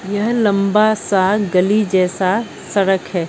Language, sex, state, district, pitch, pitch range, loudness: Hindi, female, Bihar, Katihar, 195 Hz, 185-210 Hz, -16 LUFS